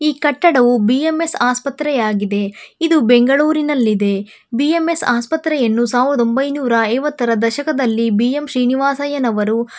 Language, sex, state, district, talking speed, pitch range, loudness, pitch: Kannada, female, Karnataka, Bangalore, 105 wpm, 230-295 Hz, -16 LUFS, 250 Hz